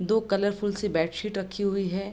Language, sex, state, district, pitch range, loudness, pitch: Hindi, female, Bihar, Bhagalpur, 195-205 Hz, -28 LUFS, 200 Hz